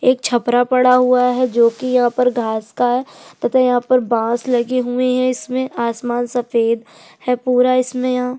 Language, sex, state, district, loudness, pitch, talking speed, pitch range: Hindi, female, Chhattisgarh, Sukma, -17 LUFS, 250 Hz, 180 wpm, 240-255 Hz